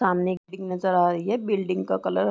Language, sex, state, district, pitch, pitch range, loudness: Hindi, female, Chhattisgarh, Raigarh, 185 Hz, 175-190 Hz, -25 LUFS